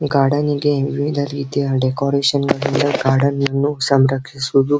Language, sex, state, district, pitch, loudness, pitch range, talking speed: Kannada, male, Karnataka, Belgaum, 140 Hz, -17 LUFS, 135-145 Hz, 85 wpm